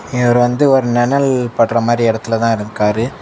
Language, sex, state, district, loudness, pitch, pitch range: Tamil, male, Tamil Nadu, Kanyakumari, -14 LUFS, 120 Hz, 115-125 Hz